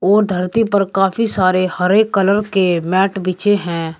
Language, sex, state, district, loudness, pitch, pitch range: Hindi, male, Uttar Pradesh, Shamli, -15 LUFS, 195 Hz, 185-205 Hz